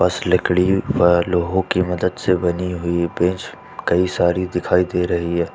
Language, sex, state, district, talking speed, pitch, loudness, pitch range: Hindi, male, Jharkhand, Ranchi, 175 wpm, 90 Hz, -19 LUFS, 85-90 Hz